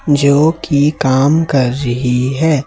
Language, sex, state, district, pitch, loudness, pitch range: Hindi, male, Jharkhand, Ranchi, 140 Hz, -13 LUFS, 130-150 Hz